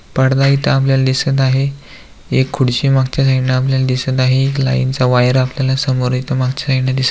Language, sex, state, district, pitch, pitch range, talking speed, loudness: Marathi, male, Maharashtra, Aurangabad, 130 Hz, 130-135 Hz, 175 wpm, -15 LUFS